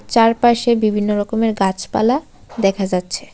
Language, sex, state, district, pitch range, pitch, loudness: Bengali, female, Tripura, West Tripura, 195-235 Hz, 220 Hz, -17 LUFS